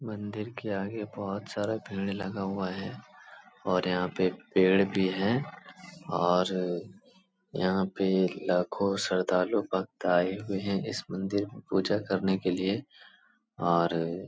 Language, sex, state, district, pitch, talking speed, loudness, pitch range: Hindi, male, Uttar Pradesh, Etah, 95 Hz, 140 wpm, -30 LUFS, 90-100 Hz